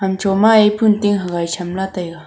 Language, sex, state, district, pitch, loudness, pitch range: Wancho, female, Arunachal Pradesh, Longding, 195 Hz, -15 LUFS, 175-210 Hz